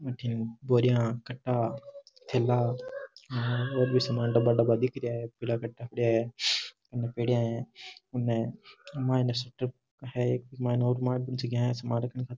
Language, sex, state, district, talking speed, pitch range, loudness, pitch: Marwari, male, Rajasthan, Nagaur, 100 wpm, 120-125 Hz, -30 LUFS, 125 Hz